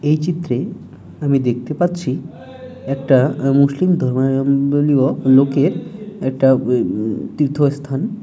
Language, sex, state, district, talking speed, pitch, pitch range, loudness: Bengali, male, West Bengal, Dakshin Dinajpur, 110 wpm, 140 Hz, 130-160 Hz, -17 LUFS